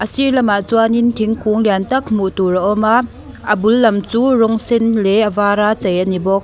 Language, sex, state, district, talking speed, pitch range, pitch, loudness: Mizo, female, Mizoram, Aizawl, 235 wpm, 200-230 Hz, 215 Hz, -14 LUFS